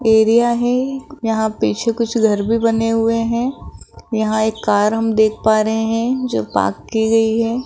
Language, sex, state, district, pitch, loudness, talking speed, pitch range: Hindi, female, Rajasthan, Jaipur, 225 Hz, -17 LUFS, 165 wpm, 220-230 Hz